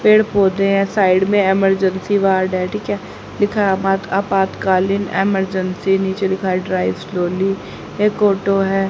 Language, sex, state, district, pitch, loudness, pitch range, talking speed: Hindi, female, Haryana, Rohtak, 195 Hz, -17 LUFS, 190-195 Hz, 155 wpm